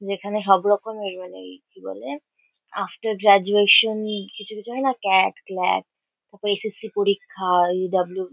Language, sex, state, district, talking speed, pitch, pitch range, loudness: Bengali, female, West Bengal, Kolkata, 145 wpm, 200 Hz, 190-215 Hz, -21 LUFS